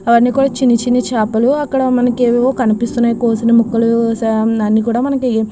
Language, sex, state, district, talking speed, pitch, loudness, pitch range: Telugu, female, Andhra Pradesh, Krishna, 140 wpm, 235 Hz, -14 LUFS, 230-250 Hz